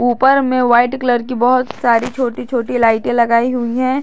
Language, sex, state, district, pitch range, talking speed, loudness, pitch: Hindi, female, Jharkhand, Garhwa, 240-255 Hz, 195 wpm, -15 LUFS, 245 Hz